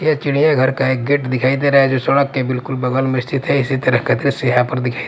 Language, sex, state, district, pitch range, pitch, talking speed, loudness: Hindi, male, Maharashtra, Mumbai Suburban, 130-140 Hz, 130 Hz, 260 wpm, -16 LUFS